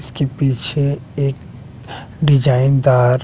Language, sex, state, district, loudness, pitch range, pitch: Hindi, male, Bihar, West Champaran, -16 LUFS, 125-140 Hz, 135 Hz